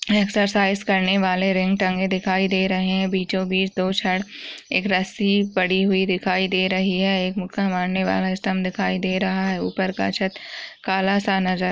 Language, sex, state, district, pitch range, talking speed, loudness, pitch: Hindi, female, Maharashtra, Chandrapur, 185-195 Hz, 180 wpm, -21 LUFS, 190 Hz